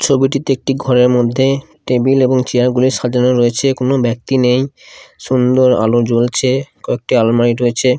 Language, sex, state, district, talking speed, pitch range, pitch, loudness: Bengali, male, Bihar, Katihar, 145 wpm, 120-135 Hz, 125 Hz, -14 LUFS